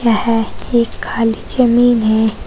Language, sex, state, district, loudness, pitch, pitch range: Hindi, female, Uttar Pradesh, Saharanpur, -14 LUFS, 230 Hz, 220-240 Hz